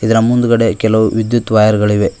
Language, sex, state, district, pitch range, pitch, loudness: Kannada, male, Karnataka, Koppal, 110-115 Hz, 110 Hz, -12 LUFS